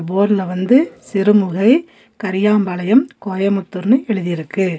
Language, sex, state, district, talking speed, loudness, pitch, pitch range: Tamil, female, Tamil Nadu, Nilgiris, 75 wpm, -16 LUFS, 200 Hz, 185-220 Hz